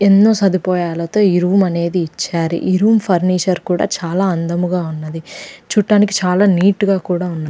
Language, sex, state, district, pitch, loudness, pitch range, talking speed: Telugu, female, Andhra Pradesh, Krishna, 180 Hz, -15 LUFS, 170-195 Hz, 170 wpm